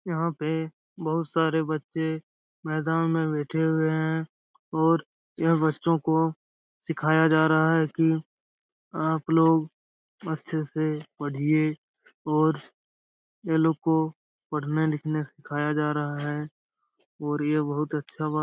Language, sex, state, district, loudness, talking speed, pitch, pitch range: Hindi, male, Bihar, Jahanabad, -26 LUFS, 125 wpm, 160 Hz, 150-160 Hz